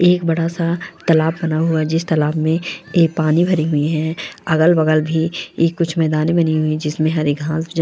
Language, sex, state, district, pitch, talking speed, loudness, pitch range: Hindi, female, Bihar, Darbhanga, 160 Hz, 215 wpm, -17 LUFS, 155-170 Hz